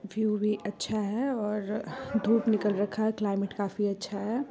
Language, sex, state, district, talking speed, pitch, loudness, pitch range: Hindi, female, Bihar, Purnia, 175 wpm, 210 Hz, -30 LUFS, 205-220 Hz